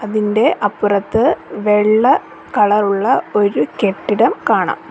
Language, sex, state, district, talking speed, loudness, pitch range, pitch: Malayalam, female, Kerala, Kollam, 85 wpm, -15 LUFS, 205-215 Hz, 210 Hz